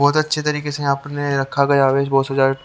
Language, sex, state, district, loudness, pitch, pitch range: Hindi, male, Haryana, Jhajjar, -18 LUFS, 140 Hz, 135-145 Hz